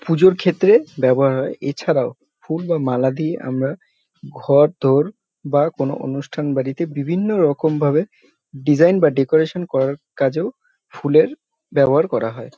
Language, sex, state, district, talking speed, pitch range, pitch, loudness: Bengali, male, West Bengal, North 24 Parganas, 135 wpm, 135-175 Hz, 150 Hz, -18 LUFS